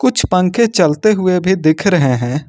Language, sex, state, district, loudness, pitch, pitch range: Hindi, male, Jharkhand, Ranchi, -13 LUFS, 180 Hz, 155-200 Hz